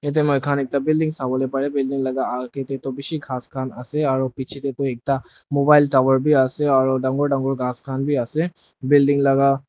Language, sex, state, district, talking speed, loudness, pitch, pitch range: Nagamese, male, Nagaland, Dimapur, 200 wpm, -20 LUFS, 135 Hz, 130-145 Hz